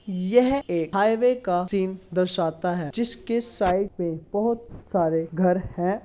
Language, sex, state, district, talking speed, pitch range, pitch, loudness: Hindi, male, Uttar Pradesh, Hamirpur, 140 wpm, 175-225 Hz, 190 Hz, -24 LUFS